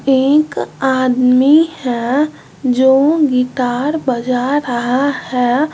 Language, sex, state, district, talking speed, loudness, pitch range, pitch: Hindi, male, Bihar, West Champaran, 85 wpm, -14 LUFS, 250-290 Hz, 265 Hz